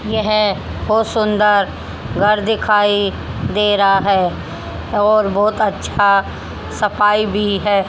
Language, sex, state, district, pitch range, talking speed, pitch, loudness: Hindi, female, Haryana, Rohtak, 200-215 Hz, 115 wpm, 210 Hz, -16 LUFS